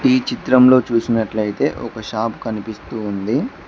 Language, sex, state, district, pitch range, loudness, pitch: Telugu, male, Telangana, Mahabubabad, 110-120 Hz, -18 LUFS, 115 Hz